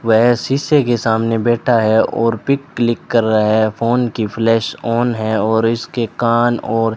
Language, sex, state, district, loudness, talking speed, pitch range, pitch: Hindi, male, Rajasthan, Bikaner, -16 LUFS, 190 wpm, 110-120 Hz, 115 Hz